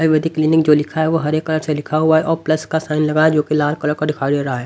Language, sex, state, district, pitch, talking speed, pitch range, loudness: Hindi, male, Haryana, Rohtak, 155 Hz, 345 wpm, 150-160 Hz, -17 LUFS